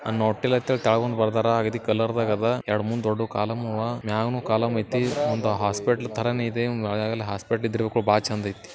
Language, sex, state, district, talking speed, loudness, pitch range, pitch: Kannada, male, Karnataka, Bijapur, 180 wpm, -25 LUFS, 110-120 Hz, 115 Hz